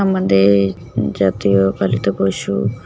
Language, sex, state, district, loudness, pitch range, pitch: Bengali, female, West Bengal, Jalpaiguri, -16 LUFS, 95-110 Hz, 100 Hz